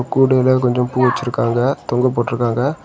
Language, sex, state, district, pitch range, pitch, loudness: Tamil, male, Tamil Nadu, Kanyakumari, 120-130 Hz, 125 Hz, -16 LUFS